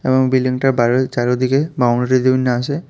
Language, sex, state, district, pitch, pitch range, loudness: Bengali, male, Tripura, West Tripura, 130 Hz, 125-130 Hz, -16 LUFS